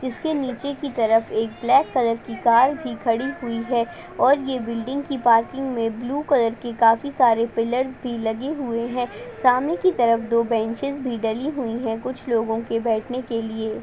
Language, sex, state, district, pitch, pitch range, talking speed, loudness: Hindi, female, Uttar Pradesh, Ghazipur, 235 Hz, 230-265 Hz, 190 wpm, -22 LUFS